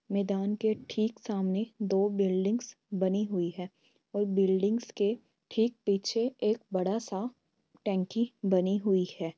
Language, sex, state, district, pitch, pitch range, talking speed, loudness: Hindi, female, Uttar Pradesh, Muzaffarnagar, 200 Hz, 190-220 Hz, 135 wpm, -31 LUFS